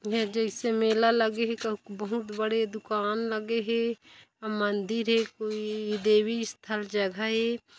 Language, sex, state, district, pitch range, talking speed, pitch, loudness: Hindi, female, Chhattisgarh, Kabirdham, 215-230 Hz, 155 wpm, 220 Hz, -28 LUFS